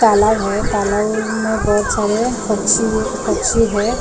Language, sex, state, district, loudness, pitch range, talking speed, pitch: Hindi, female, Maharashtra, Mumbai Suburban, -16 LUFS, 210-225 Hz, 180 wpm, 215 Hz